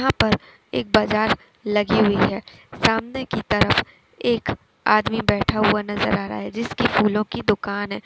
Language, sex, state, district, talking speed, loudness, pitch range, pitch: Hindi, female, Uttar Pradesh, Etah, 170 wpm, -21 LUFS, 205-220 Hz, 210 Hz